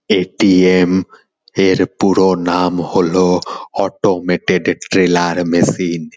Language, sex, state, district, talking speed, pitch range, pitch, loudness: Bengali, male, West Bengal, Purulia, 125 wpm, 90-95 Hz, 90 Hz, -14 LUFS